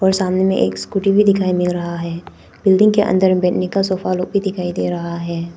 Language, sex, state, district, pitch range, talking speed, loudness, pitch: Hindi, female, Arunachal Pradesh, Papum Pare, 175-195 Hz, 250 wpm, -17 LUFS, 185 Hz